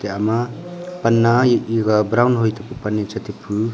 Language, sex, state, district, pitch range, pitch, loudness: Wancho, male, Arunachal Pradesh, Longding, 105-120 Hz, 115 Hz, -18 LUFS